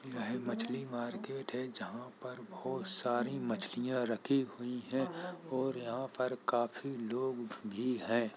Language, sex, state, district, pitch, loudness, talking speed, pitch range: Hindi, male, Uttar Pradesh, Jalaun, 125 Hz, -38 LUFS, 135 wpm, 120-130 Hz